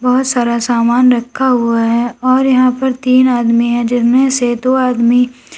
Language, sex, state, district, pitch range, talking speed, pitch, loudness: Hindi, female, Uttar Pradesh, Lalitpur, 240-255 Hz, 170 wpm, 245 Hz, -12 LUFS